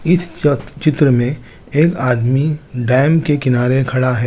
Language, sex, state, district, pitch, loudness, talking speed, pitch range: Hindi, male, Chandigarh, Chandigarh, 140 Hz, -15 LUFS, 140 wpm, 125-155 Hz